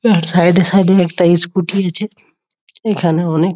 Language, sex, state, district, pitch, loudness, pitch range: Bengali, male, West Bengal, Jhargram, 185 Hz, -14 LUFS, 170-195 Hz